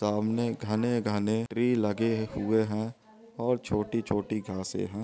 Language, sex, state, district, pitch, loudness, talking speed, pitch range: Hindi, male, Andhra Pradesh, Anantapur, 110 Hz, -30 LUFS, 105 wpm, 105-115 Hz